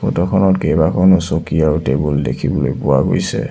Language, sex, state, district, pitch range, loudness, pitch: Assamese, male, Assam, Sonitpur, 70-90 Hz, -15 LUFS, 80 Hz